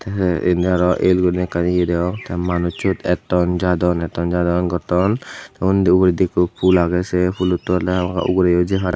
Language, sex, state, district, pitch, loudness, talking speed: Chakma, male, Tripura, Unakoti, 90 Hz, -18 LUFS, 180 wpm